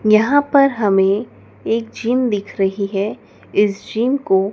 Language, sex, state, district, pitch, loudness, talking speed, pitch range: Hindi, female, Madhya Pradesh, Dhar, 215 Hz, -17 LUFS, 160 wpm, 195-240 Hz